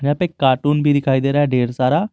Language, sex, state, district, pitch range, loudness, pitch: Hindi, male, Jharkhand, Garhwa, 130-145 Hz, -17 LUFS, 145 Hz